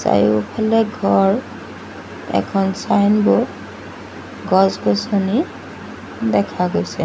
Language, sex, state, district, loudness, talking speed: Assamese, female, Assam, Sonitpur, -18 LUFS, 60 wpm